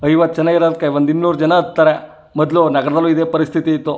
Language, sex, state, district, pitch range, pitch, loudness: Kannada, male, Karnataka, Chamarajanagar, 155-165 Hz, 160 Hz, -15 LUFS